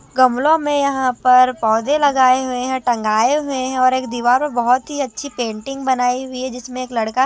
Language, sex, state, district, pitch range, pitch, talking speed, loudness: Hindi, female, Chhattisgarh, Raipur, 245-270 Hz, 255 Hz, 205 wpm, -17 LUFS